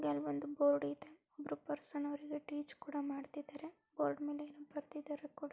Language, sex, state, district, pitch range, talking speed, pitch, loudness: Kannada, female, Karnataka, Dakshina Kannada, 260-295 Hz, 175 wpm, 290 Hz, -42 LUFS